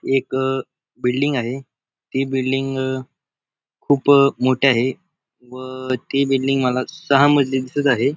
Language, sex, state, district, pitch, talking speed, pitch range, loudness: Marathi, male, Maharashtra, Pune, 135 Hz, 130 wpm, 130-140 Hz, -19 LUFS